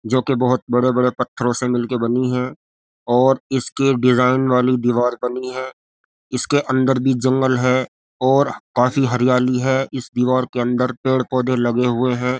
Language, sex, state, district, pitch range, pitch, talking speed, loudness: Hindi, male, Uttar Pradesh, Jyotiba Phule Nagar, 125-130 Hz, 125 Hz, 170 wpm, -18 LUFS